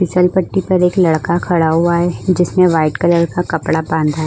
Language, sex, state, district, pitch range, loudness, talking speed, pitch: Hindi, female, Goa, North and South Goa, 160-180 Hz, -14 LUFS, 210 wpm, 170 Hz